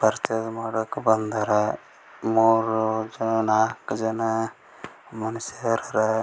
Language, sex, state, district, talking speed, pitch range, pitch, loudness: Kannada, male, Karnataka, Gulbarga, 95 wpm, 110-115 Hz, 110 Hz, -24 LUFS